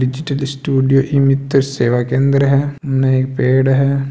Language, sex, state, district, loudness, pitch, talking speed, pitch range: Hindi, male, Rajasthan, Nagaur, -15 LUFS, 135 Hz, 160 wpm, 130-140 Hz